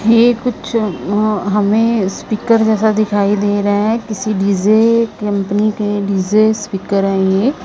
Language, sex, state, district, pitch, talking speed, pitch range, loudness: Hindi, female, Punjab, Kapurthala, 210 Hz, 135 wpm, 200-220 Hz, -14 LUFS